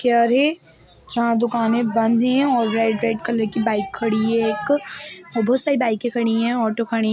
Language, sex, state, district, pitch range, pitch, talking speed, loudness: Hindi, female, Bihar, Saran, 225-240 Hz, 230 Hz, 185 wpm, -20 LUFS